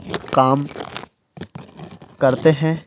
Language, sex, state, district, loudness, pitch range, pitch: Hindi, male, Madhya Pradesh, Bhopal, -18 LUFS, 135-160 Hz, 145 Hz